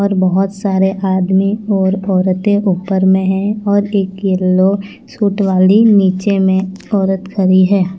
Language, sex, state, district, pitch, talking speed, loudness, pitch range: Hindi, female, Chandigarh, Chandigarh, 195 Hz, 145 wpm, -13 LUFS, 190-200 Hz